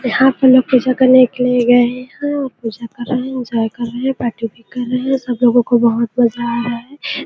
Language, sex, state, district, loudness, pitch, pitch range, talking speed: Hindi, female, Chhattisgarh, Bilaspur, -15 LUFS, 245 Hz, 235-260 Hz, 255 wpm